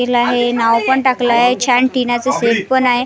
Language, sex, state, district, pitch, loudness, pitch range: Marathi, female, Maharashtra, Washim, 245 Hz, -14 LUFS, 240-255 Hz